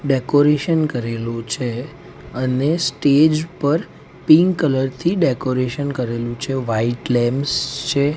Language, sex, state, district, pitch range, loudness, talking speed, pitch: Gujarati, male, Gujarat, Gandhinagar, 125-155 Hz, -19 LUFS, 110 wpm, 140 Hz